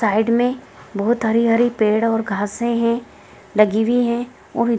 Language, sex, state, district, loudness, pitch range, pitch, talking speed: Hindi, female, Bihar, Gaya, -19 LUFS, 215-235 Hz, 230 Hz, 150 wpm